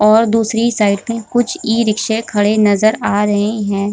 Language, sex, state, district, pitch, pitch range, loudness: Hindi, female, Bihar, Supaul, 215 Hz, 205-225 Hz, -14 LUFS